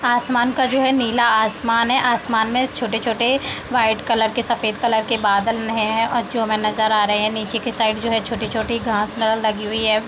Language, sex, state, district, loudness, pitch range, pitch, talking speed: Hindi, female, Uttar Pradesh, Deoria, -18 LUFS, 220-240 Hz, 225 Hz, 200 wpm